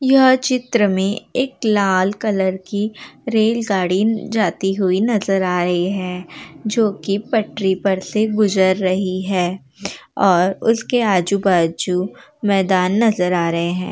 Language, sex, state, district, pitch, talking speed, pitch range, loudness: Hindi, female, Uttar Pradesh, Jalaun, 195 Hz, 140 wpm, 185-220 Hz, -18 LUFS